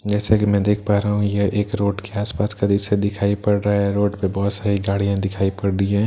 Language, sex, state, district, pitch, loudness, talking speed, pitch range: Hindi, male, Bihar, Katihar, 100 Hz, -20 LUFS, 285 wpm, 100-105 Hz